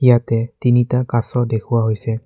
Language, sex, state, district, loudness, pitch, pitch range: Assamese, male, Assam, Kamrup Metropolitan, -18 LUFS, 120 Hz, 115-125 Hz